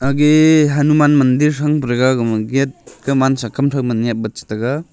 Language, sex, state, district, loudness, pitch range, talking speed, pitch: Wancho, male, Arunachal Pradesh, Longding, -15 LUFS, 120-150 Hz, 205 wpm, 135 Hz